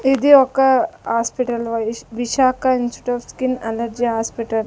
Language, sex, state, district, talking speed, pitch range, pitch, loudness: Telugu, female, Andhra Pradesh, Sri Satya Sai, 115 wpm, 230-260 Hz, 245 Hz, -18 LUFS